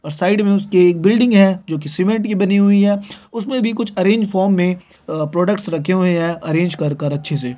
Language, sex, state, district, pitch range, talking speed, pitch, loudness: Hindi, male, Chhattisgarh, Bilaspur, 170-200 Hz, 230 wpm, 185 Hz, -16 LUFS